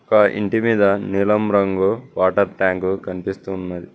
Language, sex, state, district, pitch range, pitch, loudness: Telugu, male, Telangana, Mahabubabad, 95-105 Hz, 95 Hz, -19 LUFS